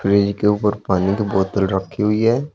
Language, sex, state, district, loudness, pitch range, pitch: Hindi, male, Uttar Pradesh, Shamli, -18 LUFS, 95-105 Hz, 100 Hz